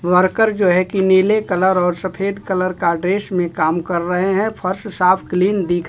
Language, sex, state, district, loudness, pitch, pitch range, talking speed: Hindi, male, Bihar, Kaimur, -17 LUFS, 185 Hz, 180-195 Hz, 205 wpm